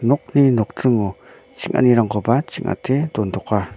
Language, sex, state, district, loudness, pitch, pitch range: Garo, male, Meghalaya, North Garo Hills, -19 LUFS, 115 Hz, 105-130 Hz